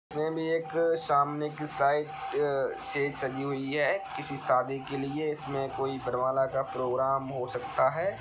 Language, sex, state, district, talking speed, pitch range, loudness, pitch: Hindi, male, Bihar, Sitamarhi, 155 wpm, 135-155 Hz, -30 LUFS, 140 Hz